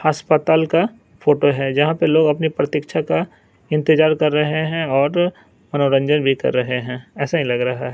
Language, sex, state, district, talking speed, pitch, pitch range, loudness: Hindi, male, Bihar, Katihar, 190 wpm, 150 Hz, 135-160 Hz, -18 LUFS